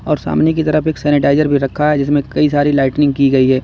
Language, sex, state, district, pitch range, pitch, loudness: Hindi, male, Uttar Pradesh, Lalitpur, 140-150 Hz, 145 Hz, -14 LUFS